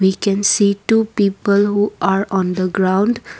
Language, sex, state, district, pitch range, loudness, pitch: English, female, Assam, Kamrup Metropolitan, 190-205 Hz, -16 LUFS, 200 Hz